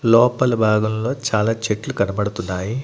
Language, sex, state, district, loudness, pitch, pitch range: Telugu, male, Andhra Pradesh, Annamaya, -19 LUFS, 110 Hz, 105-120 Hz